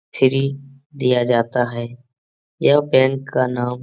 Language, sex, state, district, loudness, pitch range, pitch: Hindi, male, Bihar, Jamui, -18 LUFS, 125-135 Hz, 130 Hz